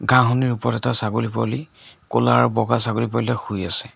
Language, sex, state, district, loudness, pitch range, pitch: Assamese, male, Assam, Sonitpur, -20 LUFS, 105-125 Hz, 115 Hz